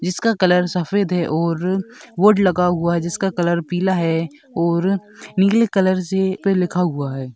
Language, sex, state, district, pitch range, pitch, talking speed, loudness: Hindi, male, Bihar, Gaya, 170-195 Hz, 180 Hz, 165 wpm, -19 LUFS